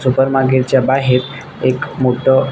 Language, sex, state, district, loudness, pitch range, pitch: Marathi, male, Maharashtra, Nagpur, -14 LUFS, 130-135 Hz, 130 Hz